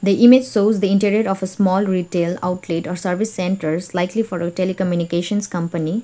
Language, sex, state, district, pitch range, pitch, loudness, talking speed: English, female, Sikkim, Gangtok, 175-205 Hz, 185 Hz, -19 LUFS, 160 wpm